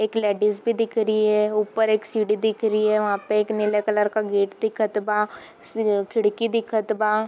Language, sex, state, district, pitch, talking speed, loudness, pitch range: Hindi, female, Bihar, East Champaran, 215 Hz, 205 wpm, -22 LUFS, 210-220 Hz